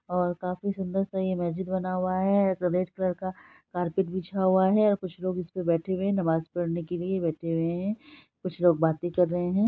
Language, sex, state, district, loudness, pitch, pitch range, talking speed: Hindi, female, Bihar, Saharsa, -27 LUFS, 185 Hz, 175-190 Hz, 215 wpm